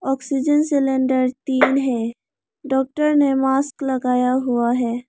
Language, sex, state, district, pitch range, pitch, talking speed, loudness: Hindi, female, Arunachal Pradesh, Lower Dibang Valley, 250-280 Hz, 265 Hz, 120 wpm, -19 LUFS